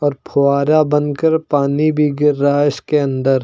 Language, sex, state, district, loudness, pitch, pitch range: Hindi, male, Uttar Pradesh, Lucknow, -15 LUFS, 145 Hz, 140-150 Hz